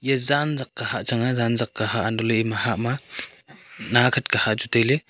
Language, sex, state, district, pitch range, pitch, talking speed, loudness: Wancho, male, Arunachal Pradesh, Longding, 115-130 Hz, 120 Hz, 190 wpm, -22 LUFS